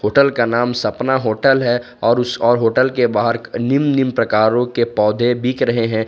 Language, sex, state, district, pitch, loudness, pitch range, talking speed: Hindi, male, Jharkhand, Ranchi, 120 Hz, -16 LUFS, 115-130 Hz, 195 wpm